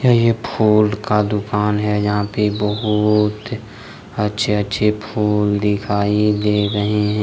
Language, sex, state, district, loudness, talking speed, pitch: Hindi, male, Jharkhand, Ranchi, -18 LUFS, 135 wpm, 105 Hz